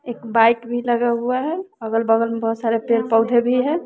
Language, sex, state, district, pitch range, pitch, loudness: Hindi, female, Bihar, West Champaran, 225-245 Hz, 235 Hz, -19 LUFS